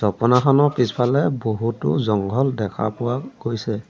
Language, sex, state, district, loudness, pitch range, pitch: Assamese, male, Assam, Sonitpur, -20 LUFS, 110-130 Hz, 120 Hz